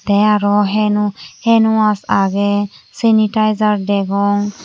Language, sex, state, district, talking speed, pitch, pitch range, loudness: Chakma, female, Tripura, West Tripura, 90 wpm, 205 Hz, 200-215 Hz, -15 LUFS